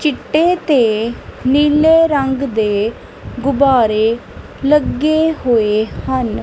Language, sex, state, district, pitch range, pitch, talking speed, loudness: Punjabi, female, Punjab, Kapurthala, 230-300 Hz, 270 Hz, 85 wpm, -15 LUFS